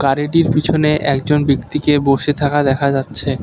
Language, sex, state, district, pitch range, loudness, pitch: Bengali, male, West Bengal, Alipurduar, 140-150 Hz, -15 LUFS, 145 Hz